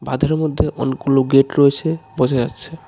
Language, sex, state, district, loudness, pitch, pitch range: Bengali, male, West Bengal, Darjeeling, -17 LUFS, 140 Hz, 135-155 Hz